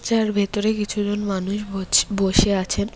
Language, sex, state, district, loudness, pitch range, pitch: Bengali, female, West Bengal, Cooch Behar, -21 LUFS, 195-210 Hz, 205 Hz